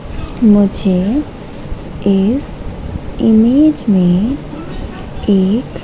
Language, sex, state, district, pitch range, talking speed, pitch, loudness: Hindi, female, Madhya Pradesh, Katni, 195-245 Hz, 50 wpm, 210 Hz, -13 LUFS